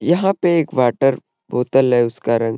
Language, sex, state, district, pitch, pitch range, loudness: Hindi, male, Bihar, Gaya, 130 Hz, 120-165 Hz, -17 LUFS